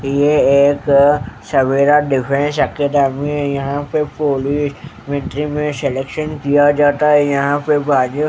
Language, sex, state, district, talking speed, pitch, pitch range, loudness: Hindi, male, Haryana, Jhajjar, 125 wpm, 145 Hz, 140-150 Hz, -15 LUFS